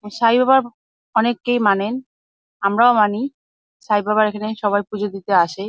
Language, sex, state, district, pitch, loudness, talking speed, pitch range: Bengali, female, West Bengal, Jalpaiguri, 215 Hz, -18 LUFS, 135 wpm, 205-240 Hz